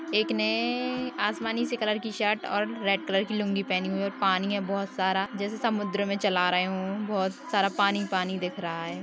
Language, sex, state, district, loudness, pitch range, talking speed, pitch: Hindi, female, Bihar, Kishanganj, -28 LUFS, 185-205 Hz, 210 wpm, 195 Hz